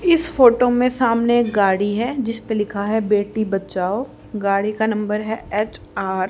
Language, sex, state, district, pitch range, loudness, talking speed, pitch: Hindi, female, Haryana, Charkhi Dadri, 205-240 Hz, -19 LUFS, 170 wpm, 215 Hz